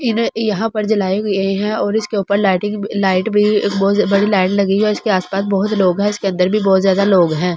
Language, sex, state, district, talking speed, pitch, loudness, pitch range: Hindi, female, Delhi, New Delhi, 255 wpm, 200 Hz, -16 LUFS, 195-210 Hz